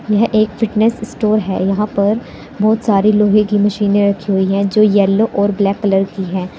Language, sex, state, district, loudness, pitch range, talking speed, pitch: Hindi, female, Uttar Pradesh, Saharanpur, -14 LUFS, 200-215 Hz, 200 wpm, 205 Hz